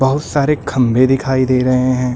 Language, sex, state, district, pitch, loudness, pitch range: Hindi, male, Uttar Pradesh, Lucknow, 130 Hz, -14 LUFS, 125-135 Hz